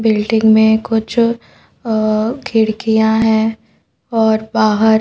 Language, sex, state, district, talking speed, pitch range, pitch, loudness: Hindi, female, Madhya Pradesh, Bhopal, 85 wpm, 220-225 Hz, 220 Hz, -14 LUFS